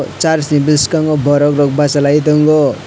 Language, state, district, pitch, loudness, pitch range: Kokborok, Tripura, West Tripura, 145 Hz, -12 LUFS, 145-150 Hz